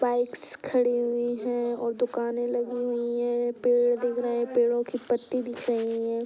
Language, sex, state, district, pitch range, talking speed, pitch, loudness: Hindi, female, Bihar, East Champaran, 240-245 Hz, 180 wpm, 240 Hz, -27 LUFS